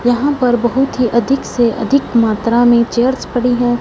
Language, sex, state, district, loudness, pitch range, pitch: Hindi, female, Punjab, Fazilka, -14 LUFS, 235-255 Hz, 245 Hz